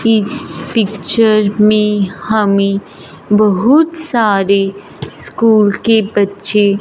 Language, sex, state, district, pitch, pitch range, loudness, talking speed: Hindi, male, Punjab, Fazilka, 210 Hz, 200-225 Hz, -12 LUFS, 80 wpm